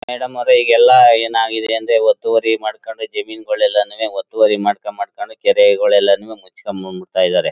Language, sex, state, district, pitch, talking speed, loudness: Kannada, male, Karnataka, Mysore, 115 Hz, 130 wpm, -15 LUFS